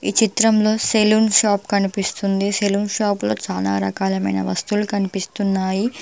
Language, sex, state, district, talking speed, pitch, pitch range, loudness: Telugu, female, Telangana, Mahabubabad, 120 wpm, 200 Hz, 190-215 Hz, -19 LUFS